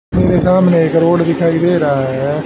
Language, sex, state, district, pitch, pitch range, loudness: Hindi, male, Haryana, Charkhi Dadri, 165 Hz, 150-175 Hz, -13 LUFS